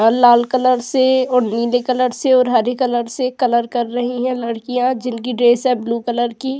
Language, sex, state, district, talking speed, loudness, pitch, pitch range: Hindi, female, Uttar Pradesh, Jyotiba Phule Nagar, 210 wpm, -16 LUFS, 245 Hz, 240-255 Hz